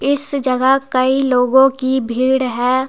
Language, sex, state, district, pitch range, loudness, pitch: Hindi, female, Jharkhand, Deoghar, 255-270 Hz, -15 LUFS, 260 Hz